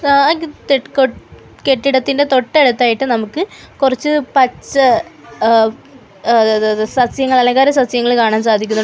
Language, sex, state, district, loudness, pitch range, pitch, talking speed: Malayalam, female, Kerala, Kollam, -14 LUFS, 230-280 Hz, 260 Hz, 110 wpm